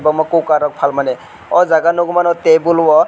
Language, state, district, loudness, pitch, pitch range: Kokborok, Tripura, West Tripura, -13 LUFS, 160 Hz, 155-170 Hz